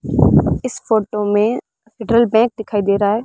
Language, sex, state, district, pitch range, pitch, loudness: Hindi, female, Rajasthan, Bikaner, 210-230 Hz, 220 Hz, -16 LUFS